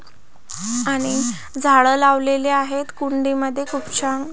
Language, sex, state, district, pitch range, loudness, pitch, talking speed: Marathi, female, Maharashtra, Pune, 265-280 Hz, -19 LUFS, 275 Hz, 95 wpm